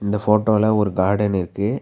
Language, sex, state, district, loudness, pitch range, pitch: Tamil, male, Tamil Nadu, Nilgiris, -19 LUFS, 100-105 Hz, 105 Hz